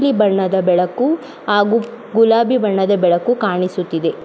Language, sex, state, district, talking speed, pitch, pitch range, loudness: Kannada, female, Karnataka, Mysore, 115 wpm, 205 Hz, 185-230 Hz, -16 LUFS